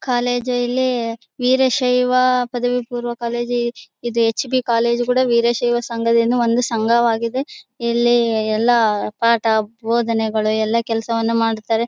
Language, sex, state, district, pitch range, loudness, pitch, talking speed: Kannada, female, Karnataka, Bellary, 230-245 Hz, -18 LUFS, 235 Hz, 100 wpm